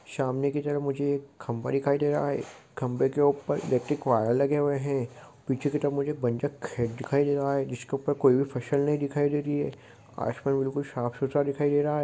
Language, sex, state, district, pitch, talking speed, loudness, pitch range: Hindi, male, West Bengal, Kolkata, 140 Hz, 230 wpm, -28 LUFS, 130-145 Hz